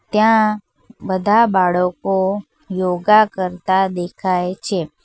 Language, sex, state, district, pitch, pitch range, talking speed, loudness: Gujarati, female, Gujarat, Valsad, 190 Hz, 180-205 Hz, 85 wpm, -17 LUFS